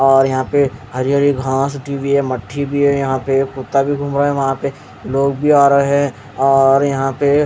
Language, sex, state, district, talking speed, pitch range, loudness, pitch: Hindi, male, Odisha, Khordha, 250 wpm, 135-140 Hz, -16 LUFS, 140 Hz